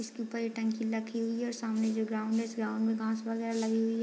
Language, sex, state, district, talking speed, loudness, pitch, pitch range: Hindi, female, Bihar, Madhepura, 310 wpm, -33 LUFS, 225 Hz, 220-230 Hz